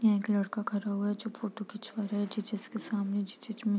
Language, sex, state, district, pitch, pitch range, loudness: Hindi, female, Bihar, East Champaran, 210 Hz, 205-220 Hz, -34 LUFS